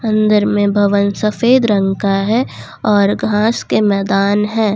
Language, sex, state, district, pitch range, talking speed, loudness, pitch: Hindi, female, Jharkhand, Ranchi, 200-215 Hz, 150 wpm, -14 LUFS, 205 Hz